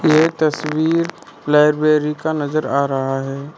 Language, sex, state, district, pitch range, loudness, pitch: Hindi, male, Arunachal Pradesh, Lower Dibang Valley, 140-155 Hz, -17 LUFS, 150 Hz